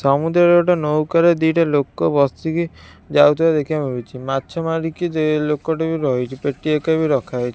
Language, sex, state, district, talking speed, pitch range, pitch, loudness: Odia, female, Odisha, Khordha, 145 wpm, 140-165 Hz, 155 Hz, -18 LUFS